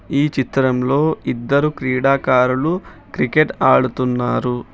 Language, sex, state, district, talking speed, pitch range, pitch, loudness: Telugu, male, Telangana, Hyderabad, 75 wpm, 125-145 Hz, 130 Hz, -17 LUFS